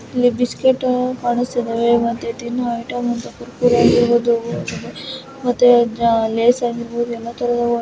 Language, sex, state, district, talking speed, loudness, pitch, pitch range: Kannada, female, Karnataka, Chamarajanagar, 105 wpm, -18 LUFS, 240 Hz, 235-245 Hz